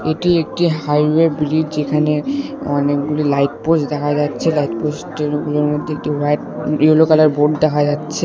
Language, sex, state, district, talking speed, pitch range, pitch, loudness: Bengali, male, West Bengal, Alipurduar, 145 wpm, 150-155 Hz, 150 Hz, -16 LUFS